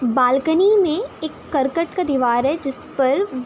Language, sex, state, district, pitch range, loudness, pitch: Hindi, female, Uttar Pradesh, Budaun, 255-330 Hz, -19 LUFS, 275 Hz